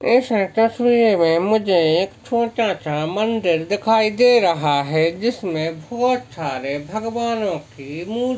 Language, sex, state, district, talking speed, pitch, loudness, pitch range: Hindi, male, Maharashtra, Sindhudurg, 120 wpm, 205 Hz, -19 LUFS, 160-230 Hz